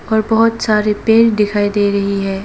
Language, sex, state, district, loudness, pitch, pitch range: Hindi, female, Arunachal Pradesh, Lower Dibang Valley, -14 LUFS, 210 Hz, 205-225 Hz